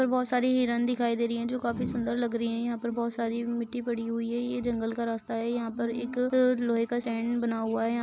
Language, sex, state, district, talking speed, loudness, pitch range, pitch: Hindi, female, Uttar Pradesh, Ghazipur, 275 wpm, -29 LUFS, 230-240 Hz, 235 Hz